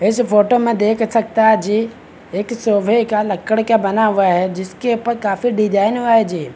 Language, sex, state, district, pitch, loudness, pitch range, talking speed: Hindi, male, Bihar, Begusarai, 220 Hz, -16 LUFS, 205-230 Hz, 190 wpm